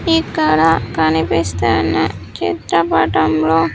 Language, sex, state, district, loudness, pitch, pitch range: Telugu, female, Andhra Pradesh, Sri Satya Sai, -15 LUFS, 155 Hz, 110-160 Hz